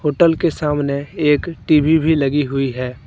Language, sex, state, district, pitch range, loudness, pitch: Hindi, male, Jharkhand, Deoghar, 140-160 Hz, -17 LUFS, 150 Hz